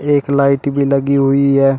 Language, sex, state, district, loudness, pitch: Hindi, male, Uttar Pradesh, Shamli, -14 LUFS, 140 Hz